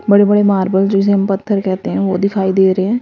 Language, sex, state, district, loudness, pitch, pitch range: Hindi, female, Haryana, Rohtak, -14 LUFS, 195 Hz, 190-205 Hz